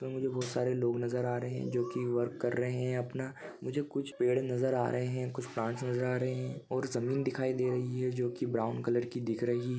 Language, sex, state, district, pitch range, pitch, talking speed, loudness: Hindi, male, Chhattisgarh, Bilaspur, 120-130 Hz, 125 Hz, 265 wpm, -34 LUFS